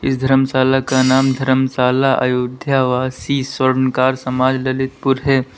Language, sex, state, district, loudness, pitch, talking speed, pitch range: Hindi, male, Uttar Pradesh, Lalitpur, -16 LUFS, 130 Hz, 120 wpm, 130-135 Hz